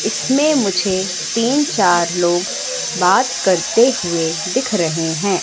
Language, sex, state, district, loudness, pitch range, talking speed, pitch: Hindi, female, Madhya Pradesh, Katni, -16 LUFS, 175-240 Hz, 110 wpm, 190 Hz